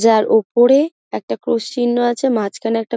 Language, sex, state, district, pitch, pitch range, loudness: Bengali, female, West Bengal, Dakshin Dinajpur, 235 Hz, 225-245 Hz, -16 LUFS